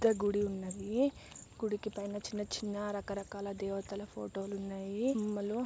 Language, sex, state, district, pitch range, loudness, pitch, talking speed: Telugu, female, Andhra Pradesh, Srikakulam, 200-215 Hz, -37 LUFS, 205 Hz, 135 wpm